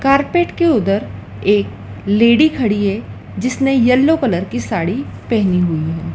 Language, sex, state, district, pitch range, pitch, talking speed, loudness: Hindi, female, Madhya Pradesh, Dhar, 195-270 Hz, 230 Hz, 145 wpm, -16 LUFS